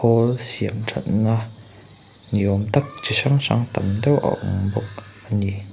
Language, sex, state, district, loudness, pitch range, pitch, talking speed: Mizo, male, Mizoram, Aizawl, -21 LUFS, 100-120 Hz, 110 Hz, 145 wpm